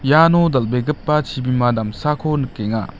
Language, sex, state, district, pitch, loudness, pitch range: Garo, male, Meghalaya, West Garo Hills, 135 Hz, -18 LUFS, 120-150 Hz